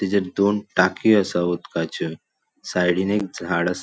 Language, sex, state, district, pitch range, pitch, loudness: Konkani, male, Goa, North and South Goa, 90-100 Hz, 90 Hz, -22 LUFS